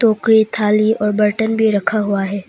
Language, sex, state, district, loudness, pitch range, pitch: Hindi, female, Arunachal Pradesh, Papum Pare, -15 LUFS, 205-220 Hz, 215 Hz